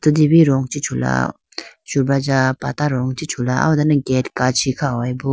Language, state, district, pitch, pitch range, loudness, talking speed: Idu Mishmi, Arunachal Pradesh, Lower Dibang Valley, 135 Hz, 125-145 Hz, -18 LUFS, 180 wpm